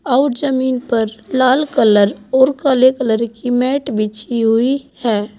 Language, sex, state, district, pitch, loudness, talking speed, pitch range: Hindi, female, Uttar Pradesh, Saharanpur, 250 Hz, -15 LUFS, 145 wpm, 225-265 Hz